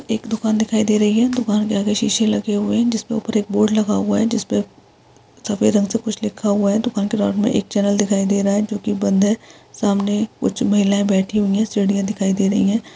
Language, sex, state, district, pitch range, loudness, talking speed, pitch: Hindi, female, Chhattisgarh, Sukma, 200-220 Hz, -18 LUFS, 235 wpm, 210 Hz